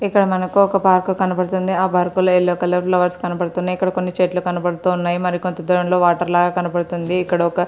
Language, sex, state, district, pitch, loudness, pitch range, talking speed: Telugu, female, Andhra Pradesh, Srikakulam, 180 Hz, -18 LUFS, 175-185 Hz, 210 wpm